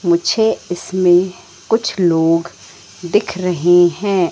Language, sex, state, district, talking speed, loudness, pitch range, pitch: Hindi, female, Madhya Pradesh, Katni, 95 wpm, -15 LUFS, 170-190 Hz, 175 Hz